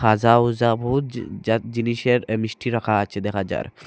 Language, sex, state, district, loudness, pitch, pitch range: Bengali, male, Assam, Hailakandi, -21 LUFS, 115 Hz, 110-120 Hz